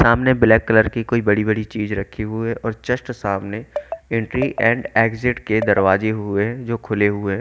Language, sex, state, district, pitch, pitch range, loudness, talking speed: Hindi, male, Haryana, Charkhi Dadri, 110 Hz, 105-115 Hz, -19 LUFS, 195 wpm